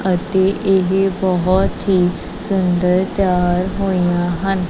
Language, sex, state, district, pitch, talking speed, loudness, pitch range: Punjabi, female, Punjab, Kapurthala, 185 Hz, 100 wpm, -17 LUFS, 180-195 Hz